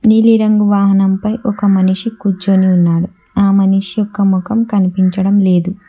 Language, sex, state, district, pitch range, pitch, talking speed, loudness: Telugu, female, Telangana, Hyderabad, 190-210 Hz, 195 Hz, 120 wpm, -13 LUFS